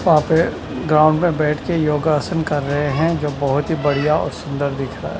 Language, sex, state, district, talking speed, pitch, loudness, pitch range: Hindi, male, Maharashtra, Mumbai Suburban, 220 wpm, 150 Hz, -18 LUFS, 145-160 Hz